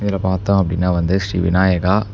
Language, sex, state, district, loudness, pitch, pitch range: Tamil, male, Tamil Nadu, Namakkal, -17 LUFS, 95 Hz, 90-95 Hz